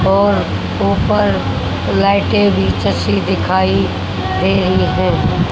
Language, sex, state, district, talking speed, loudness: Hindi, female, Haryana, Charkhi Dadri, 85 wpm, -15 LUFS